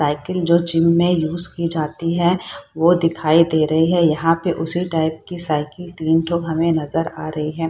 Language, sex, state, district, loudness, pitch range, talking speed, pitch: Hindi, female, Bihar, Saharsa, -18 LUFS, 160-170 Hz, 210 wpm, 165 Hz